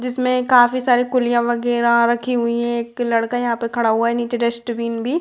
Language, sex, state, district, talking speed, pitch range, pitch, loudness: Hindi, female, Bihar, Gopalganj, 220 wpm, 235-245 Hz, 240 Hz, -18 LUFS